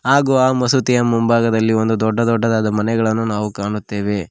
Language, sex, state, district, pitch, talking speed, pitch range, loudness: Kannada, male, Karnataka, Koppal, 115 Hz, 140 wpm, 105-120 Hz, -17 LUFS